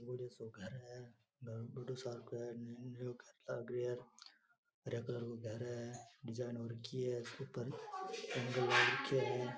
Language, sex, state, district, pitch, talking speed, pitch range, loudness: Rajasthani, male, Rajasthan, Churu, 120 Hz, 120 wpm, 120-125 Hz, -42 LUFS